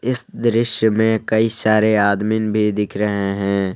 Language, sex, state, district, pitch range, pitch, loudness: Hindi, male, Jharkhand, Palamu, 105-110 Hz, 110 Hz, -18 LUFS